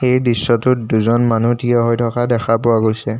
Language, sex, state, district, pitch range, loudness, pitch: Assamese, male, Assam, Kamrup Metropolitan, 115-120 Hz, -15 LUFS, 120 Hz